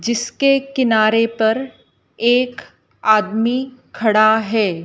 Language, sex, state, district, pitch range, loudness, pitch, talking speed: Hindi, female, Madhya Pradesh, Dhar, 220-250 Hz, -17 LUFS, 225 Hz, 85 wpm